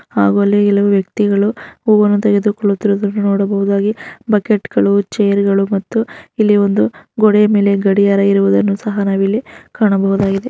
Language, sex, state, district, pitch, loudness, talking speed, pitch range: Kannada, female, Karnataka, Mysore, 200 Hz, -14 LUFS, 120 wpm, 200-210 Hz